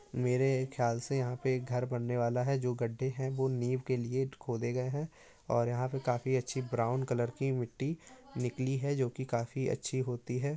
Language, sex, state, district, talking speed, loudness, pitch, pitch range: Hindi, male, Uttar Pradesh, Etah, 205 wpm, -34 LUFS, 130 Hz, 125-135 Hz